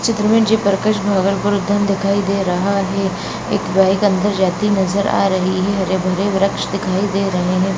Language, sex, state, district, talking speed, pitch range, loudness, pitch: Hindi, female, Bihar, Bhagalpur, 195 wpm, 190-200 Hz, -16 LUFS, 195 Hz